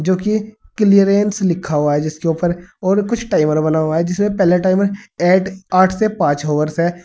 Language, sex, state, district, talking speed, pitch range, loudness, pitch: Hindi, male, Uttar Pradesh, Saharanpur, 205 wpm, 160-200 Hz, -16 LUFS, 185 Hz